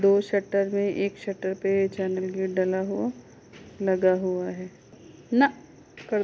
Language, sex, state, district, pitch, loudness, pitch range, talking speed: Hindi, female, Uttar Pradesh, Etah, 195 Hz, -26 LUFS, 185-200 Hz, 125 wpm